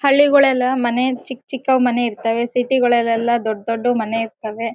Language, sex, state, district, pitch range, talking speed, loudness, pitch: Kannada, female, Karnataka, Bellary, 230-260 Hz, 150 wpm, -17 LUFS, 245 Hz